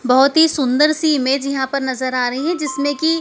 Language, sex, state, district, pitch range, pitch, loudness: Hindi, female, Madhya Pradesh, Dhar, 260-310 Hz, 275 Hz, -17 LUFS